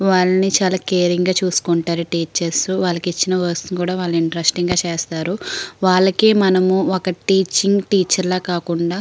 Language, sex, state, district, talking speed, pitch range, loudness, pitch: Telugu, female, Andhra Pradesh, Srikakulam, 140 wpm, 170-190 Hz, -17 LUFS, 185 Hz